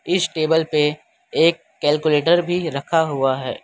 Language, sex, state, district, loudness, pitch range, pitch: Hindi, male, Gujarat, Valsad, -19 LUFS, 150-165 Hz, 160 Hz